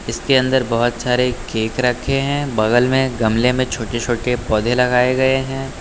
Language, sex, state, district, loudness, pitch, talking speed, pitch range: Hindi, male, Uttar Pradesh, Lucknow, -17 LUFS, 125 Hz, 175 wpm, 120-130 Hz